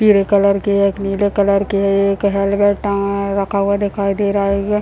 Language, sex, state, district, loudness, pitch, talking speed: Hindi, male, Bihar, Muzaffarpur, -16 LUFS, 200 Hz, 225 wpm